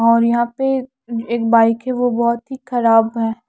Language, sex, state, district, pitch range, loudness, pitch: Hindi, female, Haryana, Charkhi Dadri, 230-250 Hz, -17 LUFS, 235 Hz